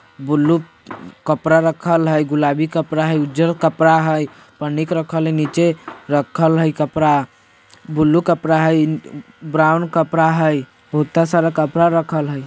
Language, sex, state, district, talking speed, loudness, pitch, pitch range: Bajjika, male, Bihar, Vaishali, 135 wpm, -17 LUFS, 155 Hz, 150-165 Hz